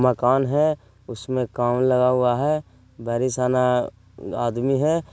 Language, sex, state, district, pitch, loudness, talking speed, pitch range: Hindi, male, Bihar, Jahanabad, 125 Hz, -22 LUFS, 115 wpm, 120-135 Hz